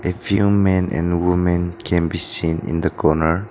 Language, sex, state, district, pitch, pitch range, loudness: English, male, Nagaland, Dimapur, 90 Hz, 85-95 Hz, -19 LUFS